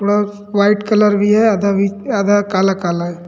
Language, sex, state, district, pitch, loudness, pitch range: Chhattisgarhi, male, Chhattisgarh, Rajnandgaon, 205 Hz, -15 LUFS, 195-210 Hz